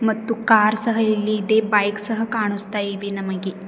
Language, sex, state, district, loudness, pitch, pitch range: Kannada, female, Karnataka, Bidar, -20 LUFS, 215 Hz, 205-220 Hz